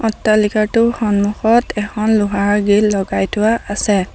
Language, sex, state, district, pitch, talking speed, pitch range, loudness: Assamese, female, Assam, Sonitpur, 210 Hz, 115 wpm, 205-220 Hz, -15 LUFS